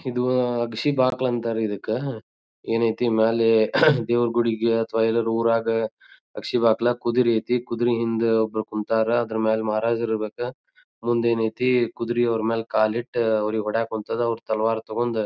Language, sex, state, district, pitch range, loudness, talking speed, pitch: Kannada, male, Karnataka, Dharwad, 110-120 Hz, -23 LUFS, 140 wpm, 115 Hz